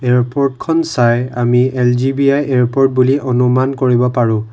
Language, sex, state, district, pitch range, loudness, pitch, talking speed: Assamese, male, Assam, Kamrup Metropolitan, 125-135 Hz, -14 LUFS, 125 Hz, 120 wpm